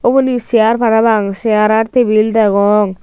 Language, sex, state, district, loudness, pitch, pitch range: Chakma, female, Tripura, Unakoti, -12 LUFS, 220 Hz, 210-230 Hz